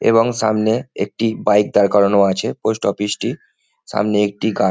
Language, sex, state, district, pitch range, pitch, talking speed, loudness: Bengali, male, West Bengal, Jhargram, 100-110 Hz, 105 Hz, 165 wpm, -17 LUFS